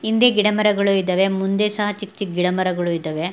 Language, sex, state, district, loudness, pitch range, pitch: Kannada, female, Karnataka, Mysore, -19 LUFS, 180-210 Hz, 195 Hz